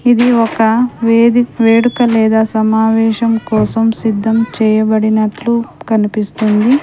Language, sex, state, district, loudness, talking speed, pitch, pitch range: Telugu, female, Telangana, Mahabubabad, -12 LUFS, 90 wpm, 225 Hz, 220-235 Hz